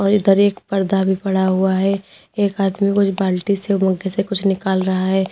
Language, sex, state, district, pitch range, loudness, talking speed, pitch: Hindi, female, Uttar Pradesh, Lalitpur, 190-200 Hz, -18 LUFS, 225 wpm, 195 Hz